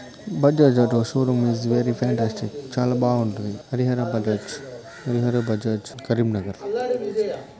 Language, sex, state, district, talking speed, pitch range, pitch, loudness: Telugu, male, Telangana, Karimnagar, 95 wpm, 115-130 Hz, 120 Hz, -23 LUFS